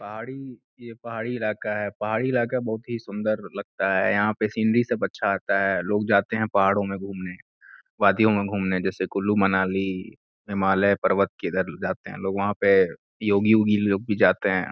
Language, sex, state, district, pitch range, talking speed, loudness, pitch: Hindi, male, Uttar Pradesh, Gorakhpur, 100-110 Hz, 185 wpm, -24 LUFS, 105 Hz